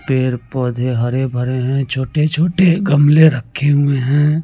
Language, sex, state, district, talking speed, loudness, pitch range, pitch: Hindi, male, Chandigarh, Chandigarh, 135 wpm, -15 LUFS, 125-150 Hz, 135 Hz